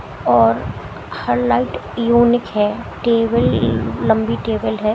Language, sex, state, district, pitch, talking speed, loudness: Hindi, female, Haryana, Jhajjar, 210 Hz, 110 wpm, -17 LUFS